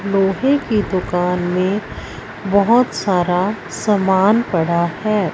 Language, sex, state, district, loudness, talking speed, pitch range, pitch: Hindi, female, Punjab, Fazilka, -17 LUFS, 100 wpm, 180-210 Hz, 195 Hz